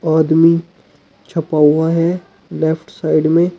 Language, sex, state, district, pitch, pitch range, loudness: Hindi, male, Uttar Pradesh, Shamli, 165 Hz, 160-170 Hz, -15 LUFS